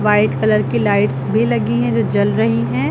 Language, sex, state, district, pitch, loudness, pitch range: Hindi, female, Uttar Pradesh, Lucknow, 115 Hz, -16 LUFS, 110-120 Hz